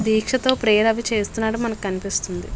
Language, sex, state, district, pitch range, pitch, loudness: Telugu, female, Andhra Pradesh, Visakhapatnam, 200-230 Hz, 220 Hz, -21 LUFS